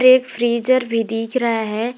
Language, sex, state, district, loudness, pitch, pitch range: Hindi, female, Jharkhand, Garhwa, -17 LUFS, 235 Hz, 225-255 Hz